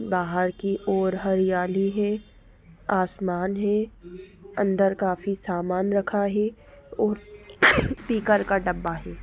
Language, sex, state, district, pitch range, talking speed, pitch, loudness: Hindi, female, Jharkhand, Sahebganj, 180-205 Hz, 110 wpm, 195 Hz, -24 LUFS